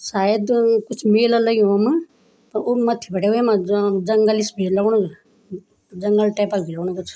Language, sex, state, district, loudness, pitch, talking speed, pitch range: Garhwali, female, Uttarakhand, Tehri Garhwal, -19 LUFS, 215 Hz, 185 wpm, 200-230 Hz